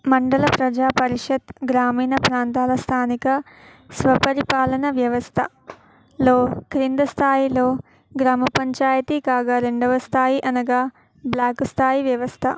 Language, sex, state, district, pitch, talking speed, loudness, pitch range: Telugu, female, Telangana, Karimnagar, 260 Hz, 90 wpm, -20 LUFS, 250-270 Hz